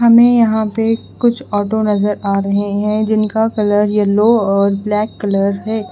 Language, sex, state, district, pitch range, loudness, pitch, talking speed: Hindi, female, Bihar, Katihar, 205-220 Hz, -15 LUFS, 210 Hz, 160 wpm